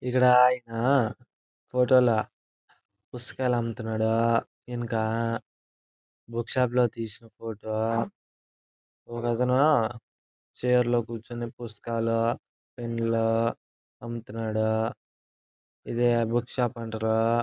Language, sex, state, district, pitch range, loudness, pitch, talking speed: Telugu, male, Andhra Pradesh, Anantapur, 110-120 Hz, -27 LUFS, 115 Hz, 80 wpm